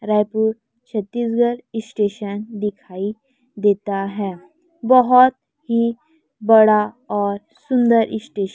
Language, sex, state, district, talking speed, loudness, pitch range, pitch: Hindi, female, Chhattisgarh, Raipur, 85 wpm, -19 LUFS, 205-240 Hz, 220 Hz